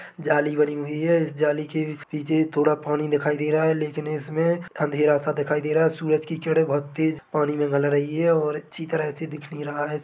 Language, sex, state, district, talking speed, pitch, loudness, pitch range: Hindi, male, Chhattisgarh, Bilaspur, 235 wpm, 150 Hz, -24 LUFS, 150-160 Hz